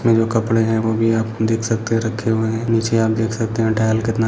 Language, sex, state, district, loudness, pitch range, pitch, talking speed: Hindi, male, Uttar Pradesh, Gorakhpur, -18 LUFS, 110-115 Hz, 115 Hz, 280 wpm